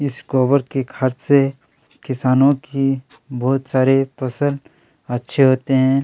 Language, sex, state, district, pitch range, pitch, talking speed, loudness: Hindi, male, Chhattisgarh, Kabirdham, 130-140 Hz, 135 Hz, 110 wpm, -18 LUFS